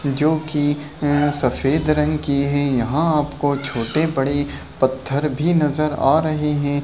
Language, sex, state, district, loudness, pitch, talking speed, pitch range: Hindi, male, Bihar, Gaya, -19 LUFS, 145 Hz, 140 wpm, 140-150 Hz